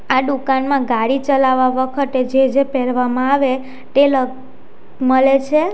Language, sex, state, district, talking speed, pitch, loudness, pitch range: Gujarati, female, Gujarat, Valsad, 135 wpm, 265 Hz, -16 LUFS, 260-275 Hz